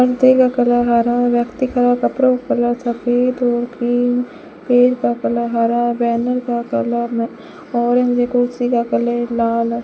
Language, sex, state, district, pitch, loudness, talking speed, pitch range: Hindi, female, Rajasthan, Bikaner, 240 Hz, -17 LUFS, 160 wpm, 235-245 Hz